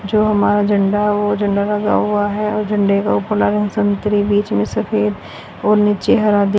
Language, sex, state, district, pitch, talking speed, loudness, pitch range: Hindi, female, Haryana, Rohtak, 205 Hz, 190 wpm, -16 LUFS, 200-210 Hz